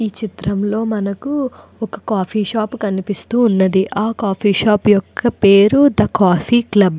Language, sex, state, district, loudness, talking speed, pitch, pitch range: Telugu, female, Andhra Pradesh, Anantapur, -15 LUFS, 155 wpm, 210 Hz, 200-225 Hz